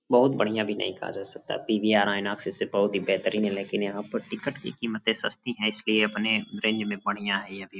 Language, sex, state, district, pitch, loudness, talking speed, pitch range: Hindi, male, Uttar Pradesh, Gorakhpur, 105 Hz, -27 LUFS, 230 wpm, 100-110 Hz